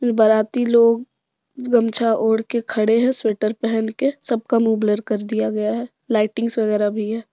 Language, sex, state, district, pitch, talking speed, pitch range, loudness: Hindi, female, Jharkhand, Deoghar, 225 Hz, 180 wpm, 215-235 Hz, -19 LUFS